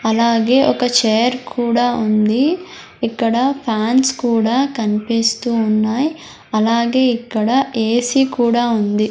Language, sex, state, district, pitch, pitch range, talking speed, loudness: Telugu, female, Andhra Pradesh, Sri Satya Sai, 235 Hz, 220-255 Hz, 105 wpm, -16 LUFS